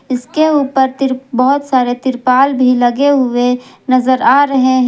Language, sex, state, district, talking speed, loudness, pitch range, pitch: Hindi, female, Jharkhand, Garhwa, 160 wpm, -12 LUFS, 250-270 Hz, 260 Hz